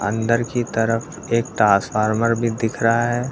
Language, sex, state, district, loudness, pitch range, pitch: Hindi, male, Uttar Pradesh, Lucknow, -20 LUFS, 115-120 Hz, 115 Hz